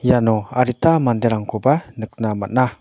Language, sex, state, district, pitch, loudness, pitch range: Garo, male, Meghalaya, North Garo Hills, 120 Hz, -18 LUFS, 110-130 Hz